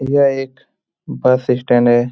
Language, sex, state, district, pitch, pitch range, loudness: Hindi, male, Bihar, Jamui, 125 Hz, 125-135 Hz, -15 LUFS